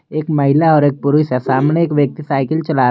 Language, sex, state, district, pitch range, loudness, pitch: Hindi, male, Jharkhand, Garhwa, 135-155 Hz, -15 LUFS, 145 Hz